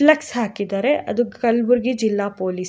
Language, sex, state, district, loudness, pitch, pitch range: Kannada, female, Karnataka, Raichur, -20 LUFS, 230 Hz, 200-245 Hz